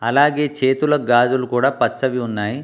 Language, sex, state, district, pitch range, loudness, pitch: Telugu, male, Telangana, Hyderabad, 120-145 Hz, -18 LUFS, 130 Hz